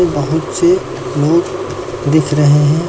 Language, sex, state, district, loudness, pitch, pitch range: Hindi, male, Uttar Pradesh, Lucknow, -14 LUFS, 155 Hz, 145-180 Hz